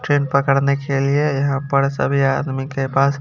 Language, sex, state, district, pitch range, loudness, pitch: Hindi, male, Bihar, Kaimur, 135-140 Hz, -18 LUFS, 140 Hz